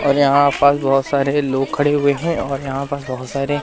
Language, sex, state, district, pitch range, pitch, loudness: Hindi, male, Madhya Pradesh, Katni, 135-145 Hz, 140 Hz, -17 LUFS